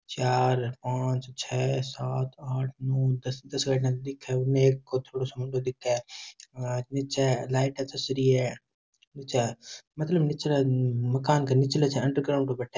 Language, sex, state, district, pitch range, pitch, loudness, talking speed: Rajasthani, male, Rajasthan, Churu, 125-135 Hz, 130 Hz, -28 LUFS, 160 wpm